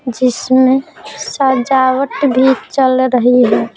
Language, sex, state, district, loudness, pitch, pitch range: Hindi, female, Bihar, Patna, -12 LUFS, 260 Hz, 255-270 Hz